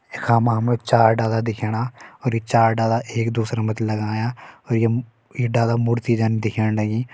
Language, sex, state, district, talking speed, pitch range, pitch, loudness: Hindi, male, Uttarakhand, Uttarkashi, 185 wpm, 110-120 Hz, 115 Hz, -21 LUFS